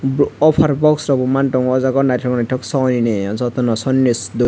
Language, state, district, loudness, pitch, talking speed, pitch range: Kokborok, Tripura, West Tripura, -16 LUFS, 130 Hz, 215 wpm, 125-135 Hz